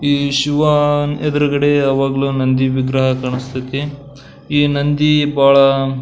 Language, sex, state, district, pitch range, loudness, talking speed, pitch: Kannada, male, Karnataka, Belgaum, 135-145 Hz, -15 LUFS, 110 wpm, 140 Hz